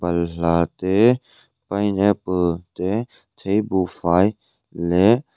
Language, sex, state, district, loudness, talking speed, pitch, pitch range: Mizo, male, Mizoram, Aizawl, -20 LUFS, 80 wpm, 95 Hz, 85-110 Hz